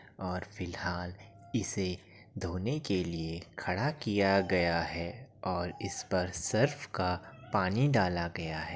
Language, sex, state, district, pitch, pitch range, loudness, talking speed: Hindi, male, Uttar Pradesh, Etah, 95 Hz, 90-105 Hz, -33 LUFS, 130 wpm